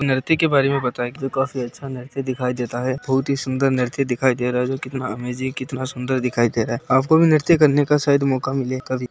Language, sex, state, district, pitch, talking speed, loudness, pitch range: Hindi, male, Bihar, Begusarai, 130 Hz, 265 wpm, -20 LUFS, 125-135 Hz